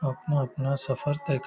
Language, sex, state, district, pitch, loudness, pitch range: Hindi, male, Uttar Pradesh, Hamirpur, 140 Hz, -28 LUFS, 135-145 Hz